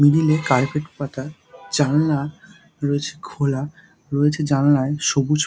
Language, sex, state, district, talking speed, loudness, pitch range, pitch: Bengali, male, West Bengal, Dakshin Dinajpur, 130 wpm, -20 LUFS, 140-155 Hz, 150 Hz